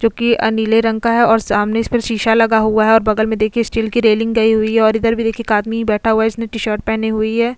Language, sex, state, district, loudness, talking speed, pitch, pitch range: Hindi, female, Goa, North and South Goa, -15 LUFS, 310 wpm, 225 Hz, 220-230 Hz